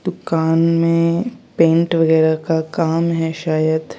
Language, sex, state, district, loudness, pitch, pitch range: Hindi, female, Bihar, West Champaran, -17 LUFS, 165 Hz, 160-165 Hz